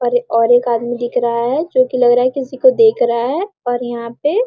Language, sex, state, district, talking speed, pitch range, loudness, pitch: Hindi, female, Bihar, Araria, 270 wpm, 240-275 Hz, -15 LUFS, 245 Hz